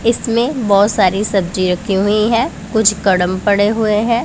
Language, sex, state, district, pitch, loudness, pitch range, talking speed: Hindi, female, Punjab, Pathankot, 210 Hz, -14 LUFS, 195-230 Hz, 170 wpm